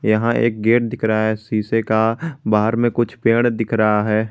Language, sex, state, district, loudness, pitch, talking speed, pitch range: Hindi, male, Jharkhand, Garhwa, -18 LUFS, 115 Hz, 210 wpm, 110-115 Hz